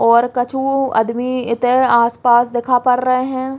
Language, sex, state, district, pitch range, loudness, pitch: Bundeli, female, Uttar Pradesh, Hamirpur, 235-260 Hz, -15 LUFS, 250 Hz